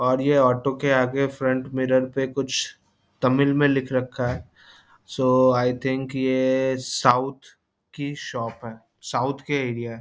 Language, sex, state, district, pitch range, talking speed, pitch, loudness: Hindi, male, Bihar, East Champaran, 125-135 Hz, 155 wpm, 130 Hz, -23 LUFS